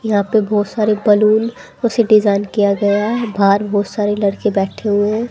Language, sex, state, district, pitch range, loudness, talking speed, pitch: Hindi, female, Haryana, Rohtak, 205-220 Hz, -15 LUFS, 190 wpm, 210 Hz